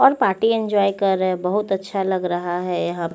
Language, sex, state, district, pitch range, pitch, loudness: Hindi, female, Chandigarh, Chandigarh, 180-205 Hz, 190 Hz, -20 LUFS